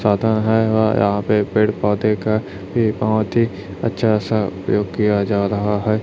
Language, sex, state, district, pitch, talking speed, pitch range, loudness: Hindi, male, Chhattisgarh, Raipur, 105 Hz, 180 wpm, 100-110 Hz, -18 LUFS